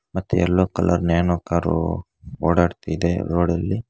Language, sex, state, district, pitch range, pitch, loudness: Kannada, male, Karnataka, Bangalore, 85-95 Hz, 85 Hz, -21 LUFS